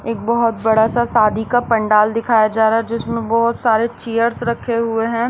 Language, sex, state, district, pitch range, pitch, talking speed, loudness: Hindi, female, Maharashtra, Washim, 220-235 Hz, 230 Hz, 205 wpm, -16 LUFS